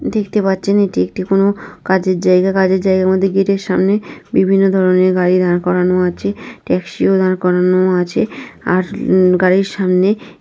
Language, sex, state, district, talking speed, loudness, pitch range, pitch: Bengali, female, West Bengal, North 24 Parganas, 150 wpm, -14 LUFS, 185-195 Hz, 185 Hz